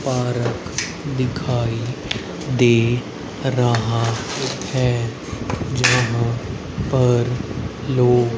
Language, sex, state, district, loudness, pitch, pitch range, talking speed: Hindi, male, Haryana, Rohtak, -20 LUFS, 120 Hz, 115-125 Hz, 55 wpm